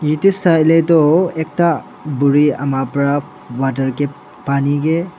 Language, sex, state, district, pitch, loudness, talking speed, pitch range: Nagamese, male, Nagaland, Dimapur, 145 Hz, -15 LUFS, 125 wpm, 140-165 Hz